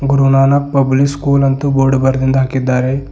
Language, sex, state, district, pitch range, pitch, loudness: Kannada, male, Karnataka, Bidar, 135-140 Hz, 135 Hz, -13 LUFS